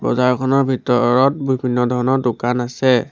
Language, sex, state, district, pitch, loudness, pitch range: Assamese, male, Assam, Sonitpur, 125 Hz, -17 LUFS, 125-130 Hz